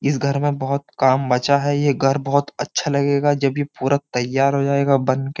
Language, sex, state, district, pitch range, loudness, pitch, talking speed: Hindi, male, Uttar Pradesh, Jyotiba Phule Nagar, 135-145 Hz, -19 LUFS, 140 Hz, 210 wpm